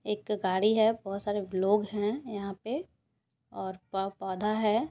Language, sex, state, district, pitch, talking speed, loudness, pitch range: Hindi, female, Bihar, Purnia, 205 Hz, 145 wpm, -31 LUFS, 195-215 Hz